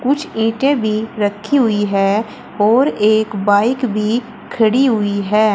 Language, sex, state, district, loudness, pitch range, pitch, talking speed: Hindi, female, Uttar Pradesh, Shamli, -16 LUFS, 210-245 Hz, 215 Hz, 140 wpm